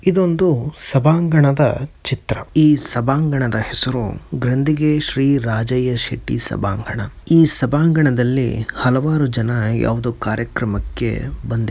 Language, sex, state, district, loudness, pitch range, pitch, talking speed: Kannada, male, Karnataka, Chamarajanagar, -17 LUFS, 115-150 Hz, 130 Hz, 95 wpm